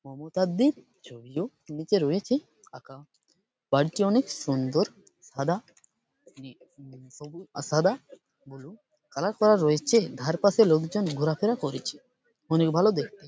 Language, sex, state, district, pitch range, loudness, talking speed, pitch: Bengali, male, West Bengal, Purulia, 140-210 Hz, -26 LUFS, 125 wpm, 165 Hz